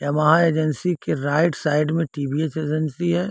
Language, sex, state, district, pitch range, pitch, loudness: Hindi, male, Bihar, East Champaran, 150-165 Hz, 155 Hz, -21 LUFS